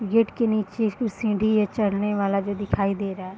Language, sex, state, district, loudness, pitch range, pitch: Hindi, female, Bihar, Madhepura, -24 LUFS, 195-220 Hz, 210 Hz